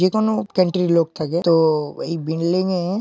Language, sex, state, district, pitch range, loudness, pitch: Bengali, male, West Bengal, Jhargram, 165-185 Hz, -19 LUFS, 175 Hz